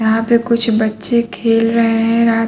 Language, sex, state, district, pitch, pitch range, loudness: Hindi, male, Uttar Pradesh, Muzaffarnagar, 230 Hz, 225-235 Hz, -14 LUFS